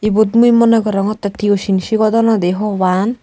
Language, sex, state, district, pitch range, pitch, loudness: Chakma, female, Tripura, Dhalai, 195-225 Hz, 210 Hz, -14 LUFS